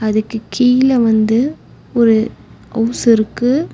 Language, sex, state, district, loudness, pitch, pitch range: Tamil, female, Tamil Nadu, Nilgiris, -14 LUFS, 230 Hz, 220-250 Hz